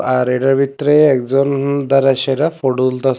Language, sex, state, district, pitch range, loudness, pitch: Bengali, male, Tripura, West Tripura, 130-140 Hz, -14 LUFS, 135 Hz